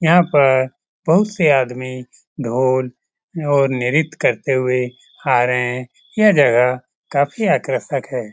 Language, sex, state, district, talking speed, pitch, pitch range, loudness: Hindi, male, Bihar, Lakhisarai, 130 wpm, 130 Hz, 125-160 Hz, -17 LUFS